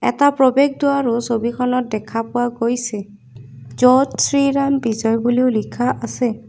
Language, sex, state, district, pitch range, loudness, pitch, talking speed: Assamese, female, Assam, Kamrup Metropolitan, 225-265 Hz, -18 LUFS, 245 Hz, 110 wpm